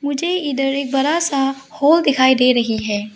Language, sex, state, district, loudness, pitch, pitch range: Hindi, female, Arunachal Pradesh, Lower Dibang Valley, -17 LUFS, 275 Hz, 255-290 Hz